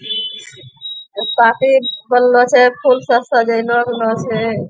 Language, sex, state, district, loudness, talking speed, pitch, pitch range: Angika, female, Bihar, Bhagalpur, -14 LUFS, 115 wpm, 230 Hz, 215-245 Hz